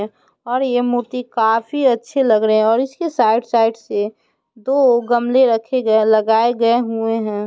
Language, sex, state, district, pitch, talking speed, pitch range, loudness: Hindi, female, Bihar, Muzaffarpur, 230 Hz, 160 wpm, 220-250 Hz, -16 LUFS